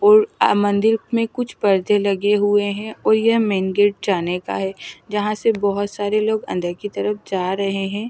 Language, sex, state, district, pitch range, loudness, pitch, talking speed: Hindi, female, Delhi, New Delhi, 200-220 Hz, -19 LUFS, 205 Hz, 190 wpm